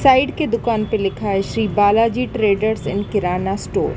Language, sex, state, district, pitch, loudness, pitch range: Hindi, male, Madhya Pradesh, Dhar, 215 Hz, -18 LUFS, 200-230 Hz